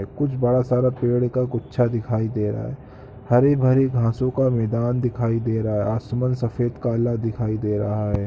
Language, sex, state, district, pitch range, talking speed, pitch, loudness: Hindi, male, Jharkhand, Sahebganj, 110-125 Hz, 150 wpm, 120 Hz, -22 LUFS